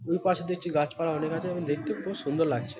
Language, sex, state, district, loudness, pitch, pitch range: Bengali, male, West Bengal, Malda, -29 LUFS, 165 Hz, 150-175 Hz